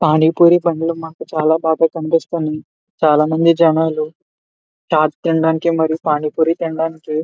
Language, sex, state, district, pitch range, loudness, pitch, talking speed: Telugu, male, Andhra Pradesh, Visakhapatnam, 155-165 Hz, -16 LUFS, 160 Hz, 135 wpm